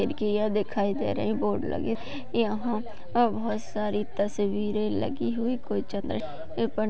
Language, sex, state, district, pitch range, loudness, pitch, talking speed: Hindi, female, Maharashtra, Sindhudurg, 205-230 Hz, -29 LUFS, 215 Hz, 150 wpm